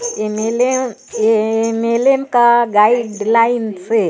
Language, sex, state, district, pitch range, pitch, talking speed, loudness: Chhattisgarhi, female, Chhattisgarh, Sarguja, 220-245 Hz, 230 Hz, 145 wpm, -15 LUFS